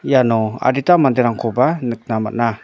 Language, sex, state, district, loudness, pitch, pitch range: Garo, male, Meghalaya, North Garo Hills, -17 LUFS, 120 Hz, 115-130 Hz